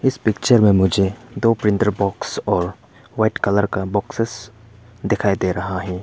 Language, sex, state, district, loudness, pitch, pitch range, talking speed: Hindi, male, Arunachal Pradesh, Papum Pare, -19 LUFS, 105 Hz, 95-110 Hz, 160 wpm